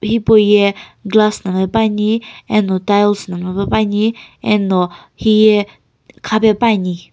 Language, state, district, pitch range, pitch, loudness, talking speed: Sumi, Nagaland, Kohima, 195-215 Hz, 210 Hz, -14 LUFS, 100 wpm